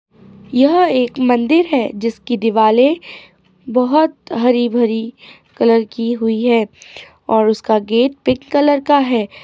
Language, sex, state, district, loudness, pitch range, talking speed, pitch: Hindi, female, Uttar Pradesh, Ghazipur, -15 LUFS, 220-270 Hz, 135 wpm, 240 Hz